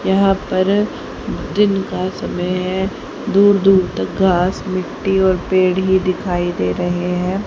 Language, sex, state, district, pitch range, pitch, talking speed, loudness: Hindi, female, Haryana, Jhajjar, 180-195 Hz, 185 Hz, 135 wpm, -17 LUFS